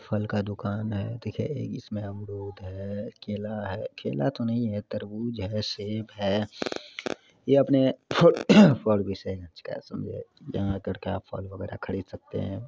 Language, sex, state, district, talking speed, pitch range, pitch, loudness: Hindi, male, Bihar, Araria, 115 wpm, 100-110 Hz, 105 Hz, -27 LUFS